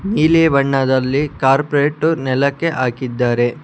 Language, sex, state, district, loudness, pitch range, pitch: Kannada, male, Karnataka, Bangalore, -16 LUFS, 130-155 Hz, 140 Hz